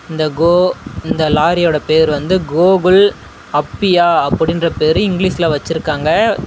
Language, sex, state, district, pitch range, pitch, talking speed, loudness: Tamil, male, Tamil Nadu, Namakkal, 155-180 Hz, 165 Hz, 110 wpm, -13 LUFS